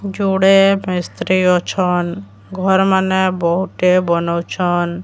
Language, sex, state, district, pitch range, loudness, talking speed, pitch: Odia, female, Odisha, Sambalpur, 175-190 Hz, -15 LUFS, 85 wpm, 185 Hz